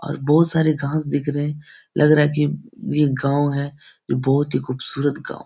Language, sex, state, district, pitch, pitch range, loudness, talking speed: Hindi, male, Bihar, Supaul, 145 Hz, 140-150 Hz, -20 LUFS, 230 wpm